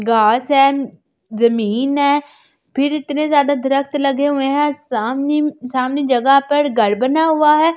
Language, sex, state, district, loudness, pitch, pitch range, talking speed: Hindi, female, Delhi, New Delhi, -16 LUFS, 275 Hz, 255-290 Hz, 145 wpm